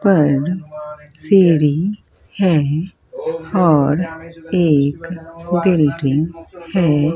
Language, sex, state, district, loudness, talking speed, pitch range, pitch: Hindi, female, Bihar, Katihar, -16 LUFS, 60 wpm, 150-180 Hz, 165 Hz